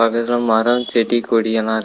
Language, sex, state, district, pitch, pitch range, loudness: Tamil, male, Tamil Nadu, Nilgiris, 115 Hz, 110-120 Hz, -17 LUFS